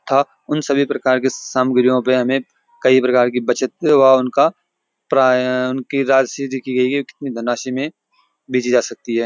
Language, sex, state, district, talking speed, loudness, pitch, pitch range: Hindi, male, Uttarakhand, Uttarkashi, 180 wpm, -17 LUFS, 130 Hz, 125-140 Hz